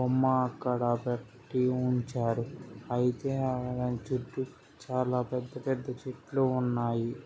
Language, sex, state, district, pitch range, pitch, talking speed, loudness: Telugu, male, Andhra Pradesh, Srikakulam, 120-130 Hz, 125 Hz, 100 wpm, -31 LUFS